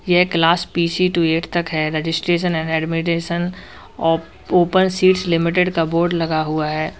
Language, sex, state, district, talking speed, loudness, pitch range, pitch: Hindi, male, Uttar Pradesh, Lalitpur, 165 wpm, -18 LUFS, 165-175 Hz, 170 Hz